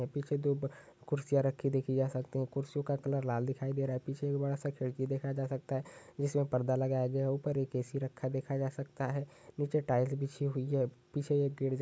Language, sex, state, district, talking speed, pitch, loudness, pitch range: Hindi, male, Chhattisgarh, Sukma, 240 wpm, 135 Hz, -35 LUFS, 130-140 Hz